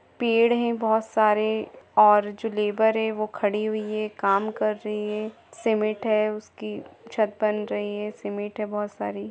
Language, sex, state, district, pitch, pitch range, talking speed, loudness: Hindi, female, Jharkhand, Jamtara, 215 Hz, 210-220 Hz, 160 wpm, -25 LUFS